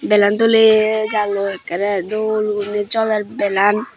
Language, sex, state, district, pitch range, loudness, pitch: Chakma, female, Tripura, Dhalai, 205-215 Hz, -16 LUFS, 210 Hz